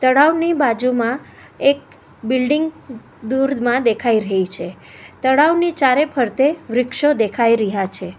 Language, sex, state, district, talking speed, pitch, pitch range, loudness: Gujarati, female, Gujarat, Valsad, 110 wpm, 255 Hz, 230-285 Hz, -17 LUFS